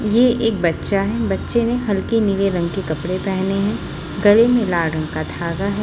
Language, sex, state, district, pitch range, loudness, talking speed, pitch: Hindi, female, Chhattisgarh, Raipur, 185-225 Hz, -18 LUFS, 205 wpm, 200 Hz